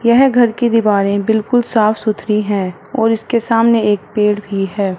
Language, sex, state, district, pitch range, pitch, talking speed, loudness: Hindi, female, Punjab, Fazilka, 205-235 Hz, 220 Hz, 180 wpm, -14 LUFS